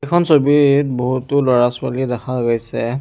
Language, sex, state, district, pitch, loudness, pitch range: Assamese, male, Assam, Sonitpur, 130 Hz, -16 LUFS, 125-140 Hz